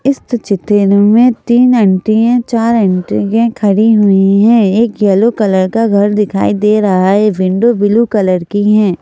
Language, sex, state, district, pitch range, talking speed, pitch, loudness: Hindi, female, Madhya Pradesh, Bhopal, 200-230 Hz, 175 wpm, 210 Hz, -10 LUFS